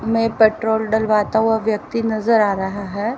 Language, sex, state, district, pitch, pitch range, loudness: Hindi, female, Haryana, Rohtak, 220 Hz, 210-225 Hz, -18 LUFS